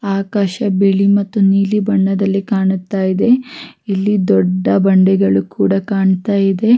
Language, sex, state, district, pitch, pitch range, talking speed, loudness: Kannada, female, Karnataka, Raichur, 195 Hz, 190-205 Hz, 125 wpm, -14 LUFS